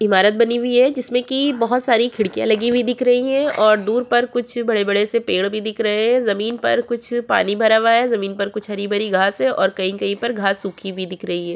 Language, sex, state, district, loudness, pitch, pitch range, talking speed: Hindi, female, Uttar Pradesh, Jyotiba Phule Nagar, -18 LUFS, 220 Hz, 200-240 Hz, 250 wpm